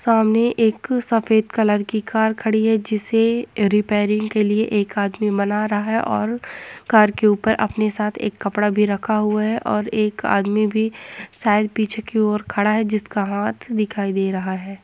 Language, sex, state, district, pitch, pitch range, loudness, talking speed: Hindi, female, Jharkhand, Jamtara, 215 Hz, 210-220 Hz, -19 LUFS, 180 wpm